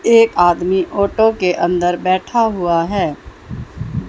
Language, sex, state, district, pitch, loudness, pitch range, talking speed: Hindi, female, Haryana, Jhajjar, 185 Hz, -15 LUFS, 175-220 Hz, 115 wpm